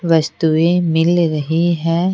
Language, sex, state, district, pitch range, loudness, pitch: Hindi, female, Bihar, Patna, 160-170 Hz, -15 LUFS, 165 Hz